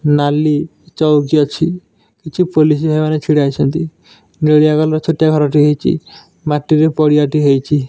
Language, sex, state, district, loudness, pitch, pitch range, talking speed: Odia, male, Odisha, Nuapada, -13 LUFS, 155 Hz, 150-155 Hz, 135 wpm